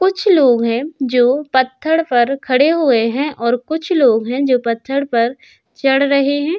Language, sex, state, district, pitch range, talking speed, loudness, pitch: Hindi, female, Uttar Pradesh, Hamirpur, 245-295 Hz, 175 wpm, -15 LUFS, 270 Hz